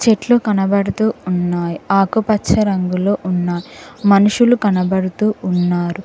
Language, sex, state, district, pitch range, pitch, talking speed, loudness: Telugu, female, Telangana, Mahabubabad, 180-215 Hz, 195 Hz, 90 wpm, -16 LUFS